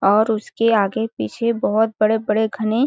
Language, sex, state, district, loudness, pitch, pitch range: Hindi, female, Chhattisgarh, Balrampur, -19 LUFS, 220 Hz, 215-225 Hz